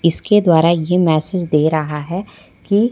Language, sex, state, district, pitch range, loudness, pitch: Hindi, female, Madhya Pradesh, Umaria, 155-185 Hz, -15 LUFS, 170 Hz